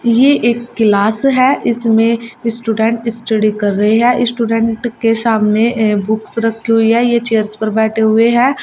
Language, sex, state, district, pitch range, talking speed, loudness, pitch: Hindi, female, Uttar Pradesh, Shamli, 220-235 Hz, 165 wpm, -13 LUFS, 230 Hz